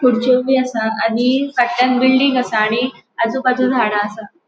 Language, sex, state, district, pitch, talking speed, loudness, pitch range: Konkani, female, Goa, North and South Goa, 250 Hz, 145 wpm, -16 LUFS, 225-255 Hz